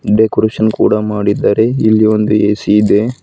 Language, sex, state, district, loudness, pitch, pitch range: Kannada, male, Karnataka, Bidar, -12 LUFS, 110 Hz, 105-110 Hz